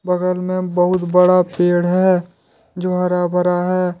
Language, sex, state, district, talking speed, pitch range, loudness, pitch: Hindi, male, Jharkhand, Deoghar, 150 wpm, 180-185 Hz, -16 LUFS, 180 Hz